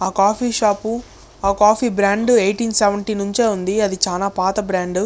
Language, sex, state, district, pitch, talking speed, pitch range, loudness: Telugu, male, Andhra Pradesh, Chittoor, 205 Hz, 180 wpm, 195-220 Hz, -18 LUFS